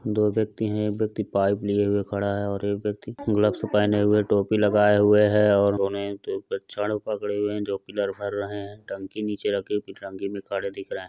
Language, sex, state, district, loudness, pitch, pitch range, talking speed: Hindi, male, Uttar Pradesh, Budaun, -24 LUFS, 105 Hz, 100-105 Hz, 220 wpm